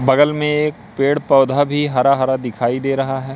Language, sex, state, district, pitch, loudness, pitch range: Hindi, male, Madhya Pradesh, Katni, 135 Hz, -17 LUFS, 130-145 Hz